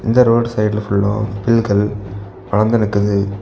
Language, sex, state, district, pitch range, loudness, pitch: Tamil, male, Tamil Nadu, Kanyakumari, 100-110 Hz, -16 LUFS, 105 Hz